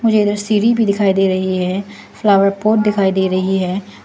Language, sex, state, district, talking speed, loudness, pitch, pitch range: Hindi, female, Arunachal Pradesh, Lower Dibang Valley, 205 wpm, -15 LUFS, 200 Hz, 190-210 Hz